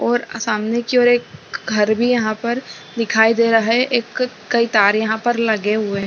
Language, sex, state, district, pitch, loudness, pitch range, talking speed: Hindi, female, Chhattisgarh, Bilaspur, 230 Hz, -17 LUFS, 220-240 Hz, 210 wpm